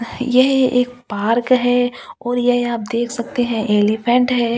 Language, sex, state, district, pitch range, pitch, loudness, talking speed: Hindi, female, Delhi, New Delhi, 235-250 Hz, 245 Hz, -17 LUFS, 185 wpm